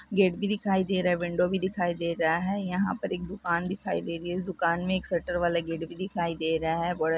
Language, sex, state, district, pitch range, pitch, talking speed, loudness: Hindi, female, Rajasthan, Nagaur, 170-190 Hz, 180 Hz, 260 wpm, -28 LUFS